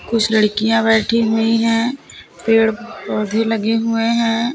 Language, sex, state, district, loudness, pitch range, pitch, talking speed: Hindi, female, Uttar Pradesh, Lalitpur, -16 LUFS, 220-230 Hz, 225 Hz, 130 wpm